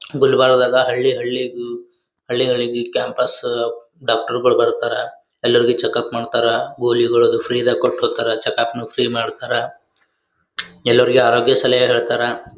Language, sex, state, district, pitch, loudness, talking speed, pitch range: Kannada, male, Karnataka, Gulbarga, 120 Hz, -17 LUFS, 125 wpm, 120-130 Hz